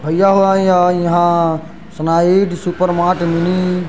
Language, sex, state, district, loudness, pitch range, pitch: Chhattisgarhi, male, Chhattisgarh, Bilaspur, -14 LUFS, 170-185 Hz, 175 Hz